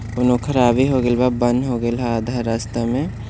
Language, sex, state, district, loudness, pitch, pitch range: Hindi, male, Bihar, East Champaran, -19 LUFS, 120 Hz, 115-125 Hz